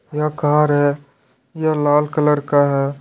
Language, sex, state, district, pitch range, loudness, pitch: Hindi, male, Jharkhand, Deoghar, 140-150 Hz, -17 LUFS, 145 Hz